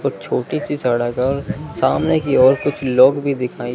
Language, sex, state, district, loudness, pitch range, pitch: Hindi, male, Chandigarh, Chandigarh, -17 LUFS, 125-145 Hz, 135 Hz